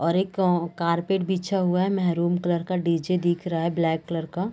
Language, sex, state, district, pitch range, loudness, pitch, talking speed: Hindi, female, Uttar Pradesh, Deoria, 170-185 Hz, -24 LUFS, 175 Hz, 200 wpm